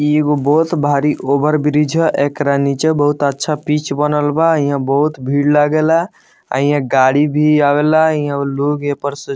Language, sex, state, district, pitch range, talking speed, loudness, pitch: Bhojpuri, male, Bihar, Muzaffarpur, 140-150 Hz, 190 wpm, -15 LUFS, 145 Hz